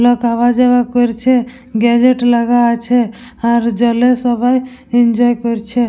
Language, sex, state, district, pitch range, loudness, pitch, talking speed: Bengali, female, West Bengal, Purulia, 235-245 Hz, -13 LUFS, 240 Hz, 120 wpm